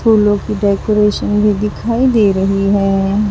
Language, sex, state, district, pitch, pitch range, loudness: Hindi, female, Uttar Pradesh, Saharanpur, 205 Hz, 195-210 Hz, -14 LUFS